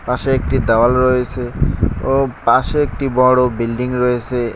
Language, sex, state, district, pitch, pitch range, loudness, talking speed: Bengali, male, West Bengal, Cooch Behar, 125 Hz, 120-130 Hz, -16 LUFS, 130 wpm